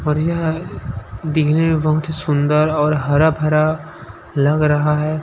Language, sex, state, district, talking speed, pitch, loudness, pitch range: Hindi, male, Chhattisgarh, Sukma, 125 wpm, 155 Hz, -17 LUFS, 150-155 Hz